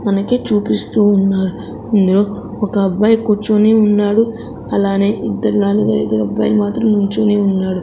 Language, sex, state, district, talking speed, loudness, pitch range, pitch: Telugu, female, Andhra Pradesh, Sri Satya Sai, 115 wpm, -15 LUFS, 190-210 Hz, 205 Hz